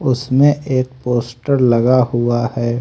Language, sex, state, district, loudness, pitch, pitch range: Hindi, male, Haryana, Rohtak, -16 LUFS, 125 Hz, 120-130 Hz